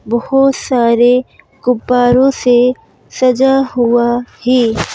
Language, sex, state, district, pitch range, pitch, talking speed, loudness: Hindi, female, Madhya Pradesh, Bhopal, 240-255 Hz, 250 Hz, 85 wpm, -12 LUFS